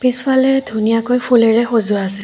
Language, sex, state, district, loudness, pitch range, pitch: Assamese, female, Assam, Kamrup Metropolitan, -14 LUFS, 220-255 Hz, 240 Hz